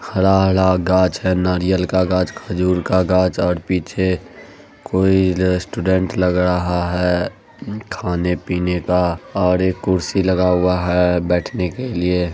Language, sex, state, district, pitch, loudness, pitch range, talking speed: Hindi, male, Bihar, Araria, 90 Hz, -18 LUFS, 90-95 Hz, 130 wpm